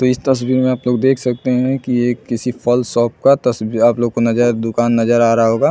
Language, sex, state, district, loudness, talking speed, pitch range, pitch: Hindi, male, Chhattisgarh, Bilaspur, -15 LUFS, 260 wpm, 120-130 Hz, 120 Hz